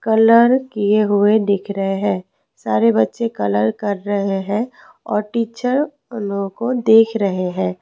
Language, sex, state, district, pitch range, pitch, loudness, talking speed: Hindi, female, Rajasthan, Jaipur, 190-230 Hz, 205 Hz, -17 LUFS, 155 wpm